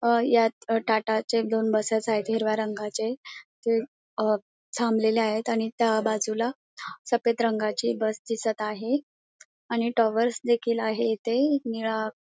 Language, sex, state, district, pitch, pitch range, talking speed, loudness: Marathi, female, Maharashtra, Pune, 225 Hz, 220-235 Hz, 140 wpm, -26 LUFS